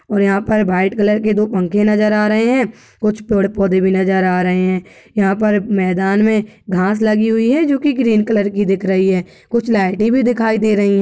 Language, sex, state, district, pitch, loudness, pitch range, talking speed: Hindi, female, Uttar Pradesh, Budaun, 210 Hz, -15 LUFS, 190-220 Hz, 235 wpm